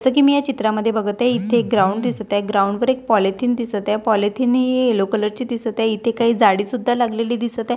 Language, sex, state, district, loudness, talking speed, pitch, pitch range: Marathi, female, Maharashtra, Washim, -18 LUFS, 240 wpm, 230 Hz, 210-245 Hz